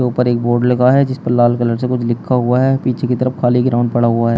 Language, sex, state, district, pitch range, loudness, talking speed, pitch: Hindi, male, Uttar Pradesh, Shamli, 120-125 Hz, -15 LUFS, 300 wpm, 125 Hz